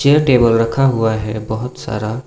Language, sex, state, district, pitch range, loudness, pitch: Hindi, male, Sikkim, Gangtok, 110-130 Hz, -16 LUFS, 115 Hz